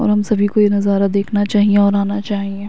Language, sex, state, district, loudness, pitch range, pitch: Hindi, female, Uttar Pradesh, Varanasi, -15 LUFS, 200-210 Hz, 205 Hz